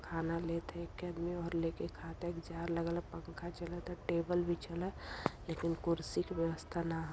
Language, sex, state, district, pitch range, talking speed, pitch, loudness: Bhojpuri, female, Uttar Pradesh, Varanasi, 165-175 Hz, 200 wpm, 170 Hz, -40 LUFS